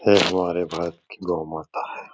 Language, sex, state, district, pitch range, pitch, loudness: Hindi, male, Uttar Pradesh, Etah, 80-90 Hz, 85 Hz, -24 LUFS